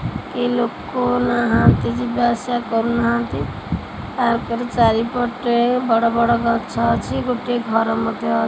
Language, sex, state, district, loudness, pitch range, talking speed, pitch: Odia, female, Odisha, Khordha, -19 LUFS, 225-245 Hz, 125 wpm, 235 Hz